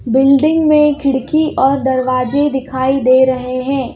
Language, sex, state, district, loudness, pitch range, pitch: Hindi, female, Madhya Pradesh, Bhopal, -13 LUFS, 260-290 Hz, 265 Hz